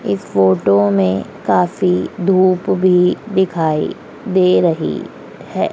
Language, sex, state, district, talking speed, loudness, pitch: Hindi, female, Madhya Pradesh, Dhar, 105 wpm, -15 LUFS, 180 Hz